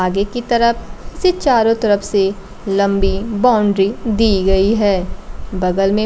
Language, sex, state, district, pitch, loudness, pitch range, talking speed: Hindi, female, Bihar, Kaimur, 205 Hz, -16 LUFS, 195-225 Hz, 140 wpm